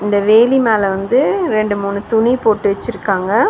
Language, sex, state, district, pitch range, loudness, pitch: Tamil, female, Tamil Nadu, Chennai, 200-230 Hz, -14 LUFS, 210 Hz